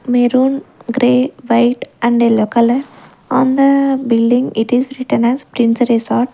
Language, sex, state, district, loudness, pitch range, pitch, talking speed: English, female, Punjab, Kapurthala, -14 LUFS, 235-260 Hz, 245 Hz, 140 wpm